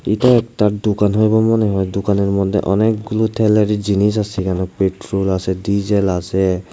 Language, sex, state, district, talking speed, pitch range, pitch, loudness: Bengali, male, Tripura, Unakoti, 160 wpm, 95-105 Hz, 100 Hz, -16 LUFS